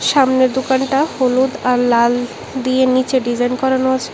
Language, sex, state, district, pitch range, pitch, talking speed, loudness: Bengali, female, Tripura, West Tripura, 250-265 Hz, 260 Hz, 145 wpm, -16 LUFS